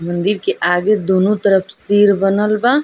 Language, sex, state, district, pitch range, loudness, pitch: Bhojpuri, female, Bihar, East Champaran, 190-210 Hz, -14 LUFS, 200 Hz